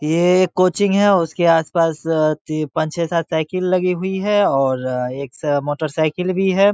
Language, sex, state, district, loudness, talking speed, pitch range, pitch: Hindi, male, Bihar, Saharsa, -18 LUFS, 180 wpm, 155-185 Hz, 165 Hz